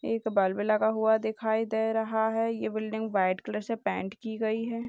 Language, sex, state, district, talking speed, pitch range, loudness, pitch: Hindi, male, Bihar, Purnia, 210 wpm, 215-225 Hz, -29 LUFS, 220 Hz